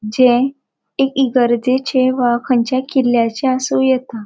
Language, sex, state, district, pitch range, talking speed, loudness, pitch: Konkani, female, Goa, North and South Goa, 240-260 Hz, 110 wpm, -15 LUFS, 255 Hz